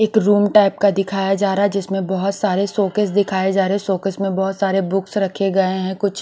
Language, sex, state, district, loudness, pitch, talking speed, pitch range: Hindi, female, Maharashtra, Washim, -18 LUFS, 195 Hz, 220 wpm, 190-200 Hz